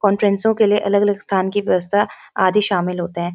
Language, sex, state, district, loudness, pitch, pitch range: Hindi, female, Uttarakhand, Uttarkashi, -18 LUFS, 200 Hz, 180-205 Hz